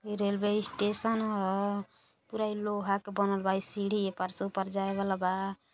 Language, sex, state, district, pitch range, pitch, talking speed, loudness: Hindi, female, Uttar Pradesh, Gorakhpur, 195-210 Hz, 200 Hz, 230 wpm, -32 LUFS